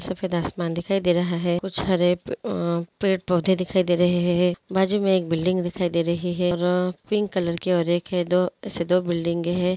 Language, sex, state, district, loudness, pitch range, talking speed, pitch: Hindi, female, Andhra Pradesh, Guntur, -23 LUFS, 175-185 Hz, 200 wpm, 180 Hz